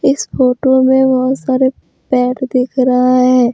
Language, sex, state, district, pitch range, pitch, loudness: Hindi, female, Jharkhand, Deoghar, 255-260 Hz, 255 Hz, -13 LUFS